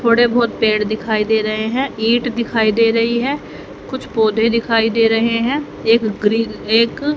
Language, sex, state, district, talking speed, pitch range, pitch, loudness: Hindi, female, Haryana, Rohtak, 175 wpm, 220-235 Hz, 230 Hz, -16 LUFS